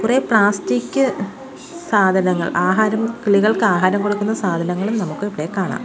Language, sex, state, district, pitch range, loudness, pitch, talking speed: Malayalam, female, Kerala, Kollam, 180-220 Hz, -18 LUFS, 205 Hz, 115 wpm